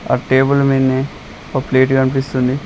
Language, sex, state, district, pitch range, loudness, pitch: Telugu, male, Telangana, Mahabubabad, 130-135 Hz, -15 LUFS, 130 Hz